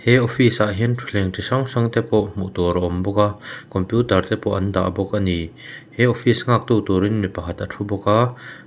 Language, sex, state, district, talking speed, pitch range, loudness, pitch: Mizo, male, Mizoram, Aizawl, 250 wpm, 95-120 Hz, -20 LUFS, 105 Hz